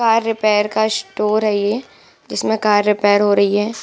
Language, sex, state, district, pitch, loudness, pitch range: Hindi, female, Bihar, Saran, 210 Hz, -16 LUFS, 205-220 Hz